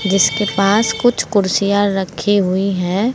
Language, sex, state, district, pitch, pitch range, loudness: Hindi, female, Uttar Pradesh, Saharanpur, 200 Hz, 190-205 Hz, -15 LUFS